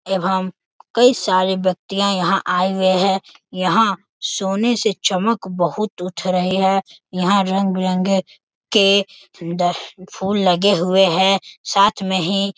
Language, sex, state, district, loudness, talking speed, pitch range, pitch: Hindi, male, Bihar, Sitamarhi, -18 LUFS, 130 wpm, 185-195 Hz, 190 Hz